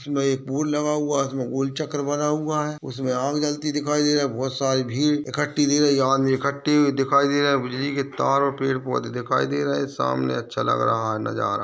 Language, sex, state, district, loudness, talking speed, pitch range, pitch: Hindi, male, Bihar, Purnia, -23 LUFS, 240 wpm, 130-145 Hz, 140 Hz